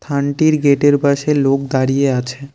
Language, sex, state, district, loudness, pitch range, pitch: Bengali, male, West Bengal, Cooch Behar, -15 LUFS, 135-145 Hz, 140 Hz